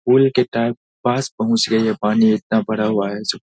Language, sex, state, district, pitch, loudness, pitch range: Hindi, male, Bihar, Saharsa, 110 Hz, -18 LUFS, 110-120 Hz